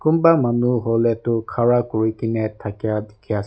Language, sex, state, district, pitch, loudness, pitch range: Nagamese, male, Nagaland, Dimapur, 115 Hz, -20 LUFS, 110-120 Hz